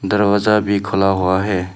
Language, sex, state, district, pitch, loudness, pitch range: Hindi, male, Arunachal Pradesh, Papum Pare, 100 Hz, -16 LUFS, 95-105 Hz